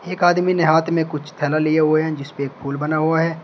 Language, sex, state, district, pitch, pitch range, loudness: Hindi, male, Uttar Pradesh, Shamli, 155 Hz, 150-165 Hz, -19 LUFS